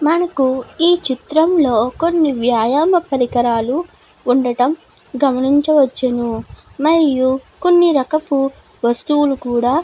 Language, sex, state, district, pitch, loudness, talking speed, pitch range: Telugu, female, Andhra Pradesh, Guntur, 275 Hz, -16 LUFS, 90 wpm, 250-315 Hz